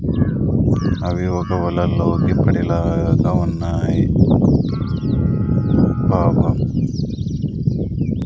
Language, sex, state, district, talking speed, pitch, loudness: Telugu, male, Andhra Pradesh, Sri Satya Sai, 60 wpm, 90 Hz, -18 LUFS